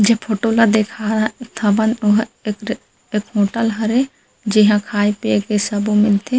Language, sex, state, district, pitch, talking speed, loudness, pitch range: Chhattisgarhi, female, Chhattisgarh, Rajnandgaon, 215 Hz, 160 wpm, -17 LUFS, 210-225 Hz